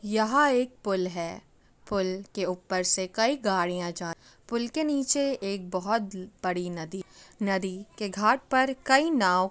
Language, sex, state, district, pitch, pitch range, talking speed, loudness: Hindi, female, Uttar Pradesh, Jyotiba Phule Nagar, 195 Hz, 185-245 Hz, 185 wpm, -27 LUFS